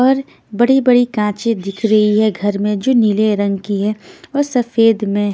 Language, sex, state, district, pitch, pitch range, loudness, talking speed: Hindi, female, Haryana, Rohtak, 215 Hz, 205-245 Hz, -15 LUFS, 190 wpm